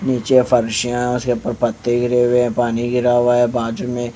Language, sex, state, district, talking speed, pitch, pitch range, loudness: Hindi, male, Bihar, West Champaran, 215 wpm, 120 Hz, 120-125 Hz, -17 LUFS